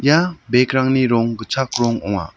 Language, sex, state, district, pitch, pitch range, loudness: Garo, male, Meghalaya, South Garo Hills, 125 Hz, 115-130 Hz, -18 LUFS